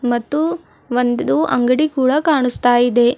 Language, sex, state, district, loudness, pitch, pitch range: Kannada, female, Karnataka, Bidar, -16 LUFS, 250 Hz, 245-295 Hz